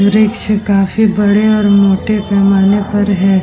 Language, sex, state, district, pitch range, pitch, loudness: Hindi, female, Bihar, Vaishali, 195-210 Hz, 205 Hz, -11 LUFS